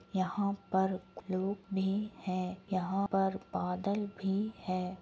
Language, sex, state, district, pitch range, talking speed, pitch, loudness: Hindi, female, Uttar Pradesh, Etah, 185-200 Hz, 105 wpm, 190 Hz, -35 LUFS